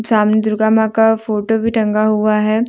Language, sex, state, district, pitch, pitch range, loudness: Hindi, female, Jharkhand, Deoghar, 220 Hz, 215-225 Hz, -14 LUFS